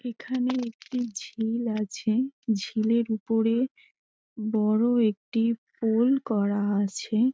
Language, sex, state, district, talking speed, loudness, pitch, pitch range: Bengali, female, West Bengal, Dakshin Dinajpur, 100 wpm, -27 LUFS, 225 Hz, 215-245 Hz